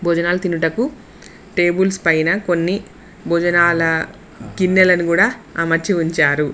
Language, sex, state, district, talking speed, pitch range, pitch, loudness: Telugu, female, Telangana, Mahabubabad, 90 wpm, 165-190 Hz, 175 Hz, -17 LUFS